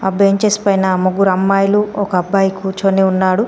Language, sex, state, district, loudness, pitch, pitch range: Telugu, female, Telangana, Komaram Bheem, -14 LUFS, 195 Hz, 190-200 Hz